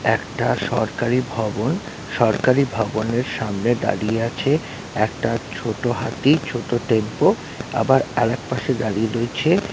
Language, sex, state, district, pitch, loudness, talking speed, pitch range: Bengali, male, West Bengal, North 24 Parganas, 120 Hz, -21 LUFS, 125 wpm, 110-130 Hz